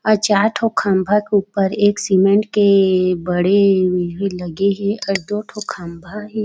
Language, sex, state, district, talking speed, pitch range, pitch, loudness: Chhattisgarhi, female, Chhattisgarh, Raigarh, 165 wpm, 190-210 Hz, 200 Hz, -17 LUFS